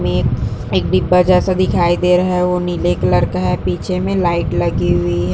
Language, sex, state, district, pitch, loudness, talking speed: Hindi, female, Uttar Pradesh, Jyotiba Phule Nagar, 120 Hz, -15 LUFS, 200 wpm